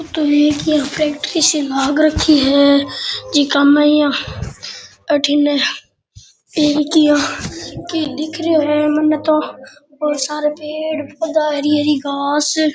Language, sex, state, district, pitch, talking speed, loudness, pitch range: Rajasthani, male, Rajasthan, Churu, 300 Hz, 125 wpm, -15 LUFS, 290-310 Hz